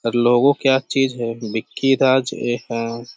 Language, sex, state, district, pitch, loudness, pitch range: Hindi, male, Bihar, Jahanabad, 120 Hz, -19 LUFS, 115-135 Hz